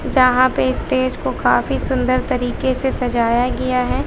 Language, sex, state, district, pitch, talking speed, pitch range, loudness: Hindi, female, Bihar, West Champaran, 255 Hz, 160 wpm, 245-255 Hz, -18 LUFS